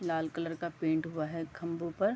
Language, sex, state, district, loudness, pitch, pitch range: Hindi, female, Uttar Pradesh, Varanasi, -35 LUFS, 165 Hz, 160-170 Hz